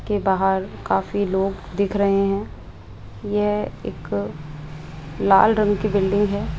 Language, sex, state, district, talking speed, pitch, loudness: Hindi, female, Rajasthan, Jaipur, 125 wpm, 190 Hz, -21 LUFS